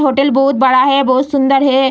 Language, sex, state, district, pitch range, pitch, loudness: Hindi, female, Bihar, Lakhisarai, 265-275 Hz, 270 Hz, -12 LUFS